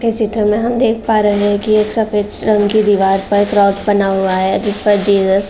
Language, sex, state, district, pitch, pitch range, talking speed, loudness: Hindi, female, Uttar Pradesh, Jalaun, 205 Hz, 200-215 Hz, 250 wpm, -14 LUFS